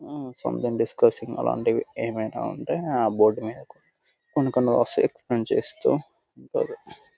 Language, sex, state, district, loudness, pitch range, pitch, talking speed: Telugu, male, Telangana, Nalgonda, -25 LUFS, 110-150 Hz, 120 Hz, 135 wpm